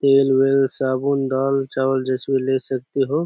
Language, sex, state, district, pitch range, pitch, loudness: Hindi, male, Chhattisgarh, Bastar, 130-135 Hz, 135 Hz, -20 LUFS